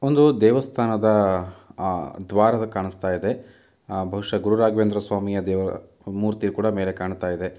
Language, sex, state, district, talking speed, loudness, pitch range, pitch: Kannada, male, Karnataka, Mysore, 110 wpm, -22 LUFS, 95-110 Hz, 100 Hz